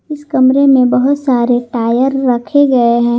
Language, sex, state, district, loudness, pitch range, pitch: Hindi, female, Jharkhand, Garhwa, -12 LUFS, 240-275 Hz, 255 Hz